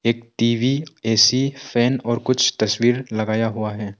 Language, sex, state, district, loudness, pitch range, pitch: Hindi, male, Arunachal Pradesh, Longding, -19 LUFS, 110-130 Hz, 120 Hz